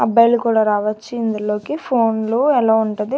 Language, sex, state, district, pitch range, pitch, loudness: Telugu, female, Andhra Pradesh, Annamaya, 215-235 Hz, 225 Hz, -17 LUFS